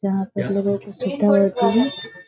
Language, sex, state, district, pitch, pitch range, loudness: Hindi, female, Bihar, Sitamarhi, 200 Hz, 195-215 Hz, -20 LUFS